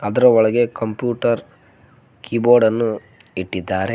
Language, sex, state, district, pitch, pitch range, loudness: Kannada, male, Karnataka, Koppal, 110 Hz, 105-120 Hz, -18 LUFS